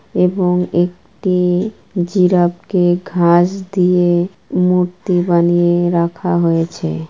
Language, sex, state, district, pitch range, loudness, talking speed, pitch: Bengali, female, West Bengal, Kolkata, 175-180 Hz, -15 LUFS, 85 wpm, 180 Hz